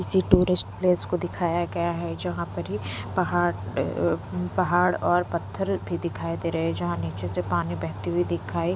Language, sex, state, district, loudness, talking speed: Hindi, female, Punjab, Pathankot, -26 LUFS, 190 wpm